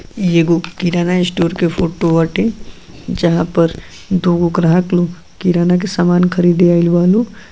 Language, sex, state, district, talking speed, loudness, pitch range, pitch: Bhojpuri, female, Uttar Pradesh, Gorakhpur, 150 wpm, -14 LUFS, 170-180 Hz, 175 Hz